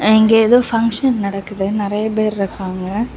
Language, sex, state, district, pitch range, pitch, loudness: Tamil, female, Tamil Nadu, Kanyakumari, 200-225 Hz, 215 Hz, -16 LUFS